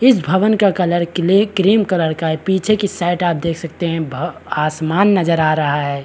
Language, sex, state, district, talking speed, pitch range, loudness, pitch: Hindi, male, Chhattisgarh, Bilaspur, 220 wpm, 160-195 Hz, -16 LUFS, 175 Hz